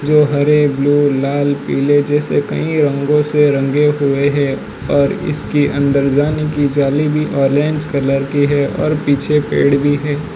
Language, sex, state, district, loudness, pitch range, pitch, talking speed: Hindi, male, Gujarat, Valsad, -15 LUFS, 140-150 Hz, 145 Hz, 160 wpm